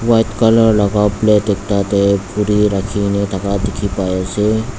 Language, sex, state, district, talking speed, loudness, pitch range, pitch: Nagamese, male, Nagaland, Dimapur, 140 wpm, -15 LUFS, 100-105 Hz, 100 Hz